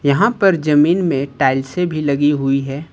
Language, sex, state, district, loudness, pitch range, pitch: Hindi, male, Uttar Pradesh, Lucknow, -16 LUFS, 140-175 Hz, 145 Hz